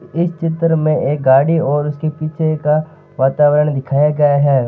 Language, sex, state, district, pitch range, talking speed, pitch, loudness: Marwari, male, Rajasthan, Nagaur, 145-155 Hz, 165 wpm, 150 Hz, -15 LUFS